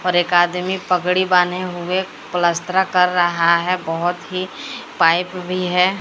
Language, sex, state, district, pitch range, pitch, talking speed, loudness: Hindi, female, Odisha, Sambalpur, 175-185 Hz, 180 Hz, 150 wpm, -18 LUFS